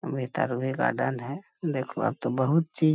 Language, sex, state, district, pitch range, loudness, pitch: Hindi, female, Bihar, Bhagalpur, 130-160 Hz, -28 LUFS, 135 Hz